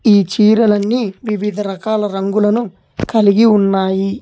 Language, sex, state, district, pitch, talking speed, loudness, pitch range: Telugu, male, Telangana, Hyderabad, 210 Hz, 100 wpm, -14 LUFS, 195-220 Hz